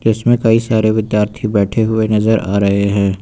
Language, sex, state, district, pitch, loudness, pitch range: Hindi, male, Uttar Pradesh, Lucknow, 110 Hz, -14 LUFS, 100-110 Hz